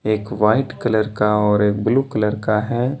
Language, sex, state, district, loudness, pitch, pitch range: Hindi, male, Jharkhand, Deoghar, -18 LUFS, 110 Hz, 105-120 Hz